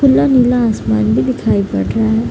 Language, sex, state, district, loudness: Hindi, female, Bihar, Gaya, -14 LUFS